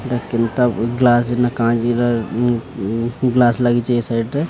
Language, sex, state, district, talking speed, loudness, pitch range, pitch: Odia, male, Odisha, Sambalpur, 95 wpm, -17 LUFS, 115-125 Hz, 120 Hz